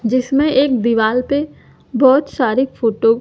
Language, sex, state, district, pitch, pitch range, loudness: Hindi, female, Madhya Pradesh, Umaria, 255 Hz, 235-275 Hz, -15 LUFS